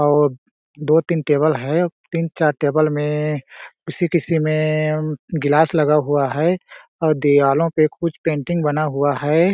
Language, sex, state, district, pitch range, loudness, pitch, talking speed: Hindi, male, Chhattisgarh, Balrampur, 150-165 Hz, -18 LUFS, 155 Hz, 150 wpm